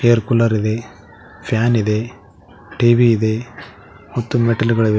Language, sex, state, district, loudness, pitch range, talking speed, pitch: Kannada, male, Karnataka, Koppal, -17 LUFS, 110-120 Hz, 110 wpm, 115 Hz